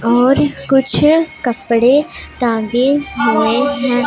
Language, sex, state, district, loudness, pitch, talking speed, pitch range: Hindi, female, Punjab, Pathankot, -13 LUFS, 260 Hz, 90 wpm, 235-285 Hz